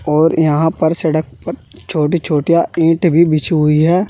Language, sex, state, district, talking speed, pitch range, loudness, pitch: Hindi, male, Uttar Pradesh, Saharanpur, 160 wpm, 150-170 Hz, -14 LUFS, 160 Hz